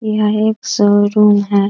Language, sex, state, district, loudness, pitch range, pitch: Hindi, female, Bihar, East Champaran, -13 LUFS, 205-215 Hz, 210 Hz